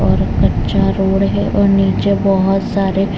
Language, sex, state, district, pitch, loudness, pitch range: Hindi, male, Gujarat, Valsad, 195 Hz, -14 LUFS, 195-200 Hz